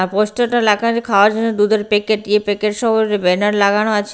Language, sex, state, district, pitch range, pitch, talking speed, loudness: Bengali, female, Bihar, Katihar, 205-220 Hz, 210 Hz, 190 wpm, -15 LUFS